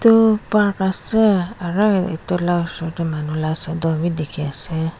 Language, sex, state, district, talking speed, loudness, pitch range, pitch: Nagamese, female, Nagaland, Dimapur, 155 wpm, -19 LUFS, 160-200 Hz, 175 Hz